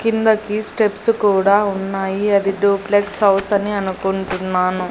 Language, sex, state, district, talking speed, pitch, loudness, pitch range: Telugu, female, Andhra Pradesh, Annamaya, 110 wpm, 200 Hz, -17 LUFS, 195-210 Hz